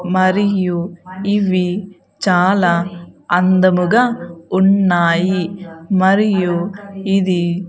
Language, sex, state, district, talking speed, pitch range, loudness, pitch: Telugu, female, Andhra Pradesh, Sri Satya Sai, 55 wpm, 175-195 Hz, -15 LUFS, 185 Hz